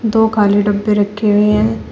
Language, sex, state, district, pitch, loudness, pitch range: Hindi, female, Uttar Pradesh, Shamli, 205 Hz, -13 LUFS, 200-215 Hz